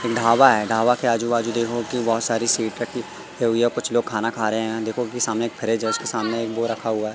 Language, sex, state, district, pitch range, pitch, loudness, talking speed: Hindi, male, Madhya Pradesh, Katni, 115-120 Hz, 115 Hz, -22 LUFS, 235 wpm